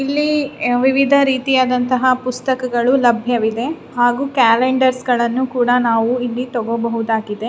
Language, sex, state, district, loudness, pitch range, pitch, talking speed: Kannada, female, Karnataka, Raichur, -16 LUFS, 235-260 Hz, 250 Hz, 95 wpm